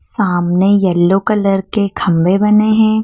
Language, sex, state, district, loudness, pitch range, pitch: Hindi, female, Madhya Pradesh, Dhar, -13 LUFS, 180-210 Hz, 200 Hz